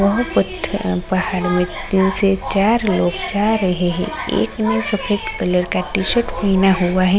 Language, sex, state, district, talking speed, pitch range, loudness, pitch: Hindi, female, Uttarakhand, Tehri Garhwal, 175 wpm, 180-205 Hz, -18 LUFS, 190 Hz